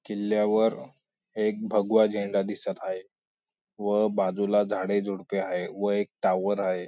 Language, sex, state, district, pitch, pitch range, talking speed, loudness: Marathi, male, Maharashtra, Sindhudurg, 100 Hz, 95-105 Hz, 130 wpm, -27 LUFS